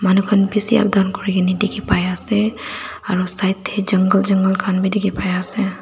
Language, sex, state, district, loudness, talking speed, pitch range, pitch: Nagamese, female, Nagaland, Dimapur, -18 LUFS, 195 wpm, 185-210 Hz, 195 Hz